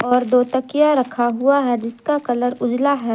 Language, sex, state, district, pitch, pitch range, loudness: Hindi, female, Jharkhand, Garhwa, 250 Hz, 240-280 Hz, -18 LUFS